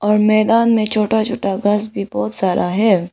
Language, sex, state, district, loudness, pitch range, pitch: Hindi, female, Arunachal Pradesh, Lower Dibang Valley, -16 LUFS, 190-215 Hz, 210 Hz